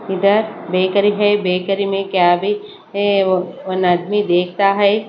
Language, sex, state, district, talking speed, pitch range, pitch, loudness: Hindi, female, Maharashtra, Mumbai Suburban, 155 wpm, 185-205 Hz, 195 Hz, -16 LUFS